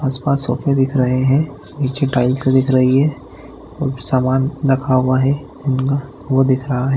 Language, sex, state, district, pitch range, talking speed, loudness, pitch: Hindi, male, Chhattisgarh, Bilaspur, 130-140 Hz, 170 wpm, -17 LUFS, 135 Hz